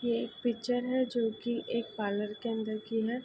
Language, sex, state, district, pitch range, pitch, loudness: Hindi, female, Uttar Pradesh, Ghazipur, 220-240 Hz, 235 Hz, -33 LUFS